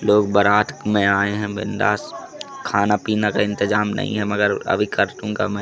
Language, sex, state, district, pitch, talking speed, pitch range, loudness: Hindi, male, Madhya Pradesh, Katni, 105 Hz, 170 wpm, 100-105 Hz, -20 LUFS